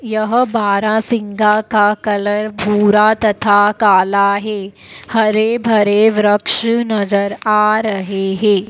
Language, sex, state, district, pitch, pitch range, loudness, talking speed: Hindi, female, Madhya Pradesh, Dhar, 210 Hz, 205-220 Hz, -14 LUFS, 105 wpm